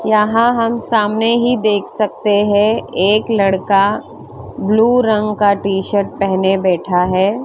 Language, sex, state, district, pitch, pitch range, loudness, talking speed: Hindi, female, Maharashtra, Mumbai Suburban, 210 Hz, 195-220 Hz, -15 LUFS, 135 wpm